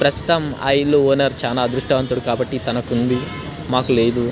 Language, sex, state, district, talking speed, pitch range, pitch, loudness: Telugu, male, Andhra Pradesh, Anantapur, 155 wpm, 120-135 Hz, 130 Hz, -19 LUFS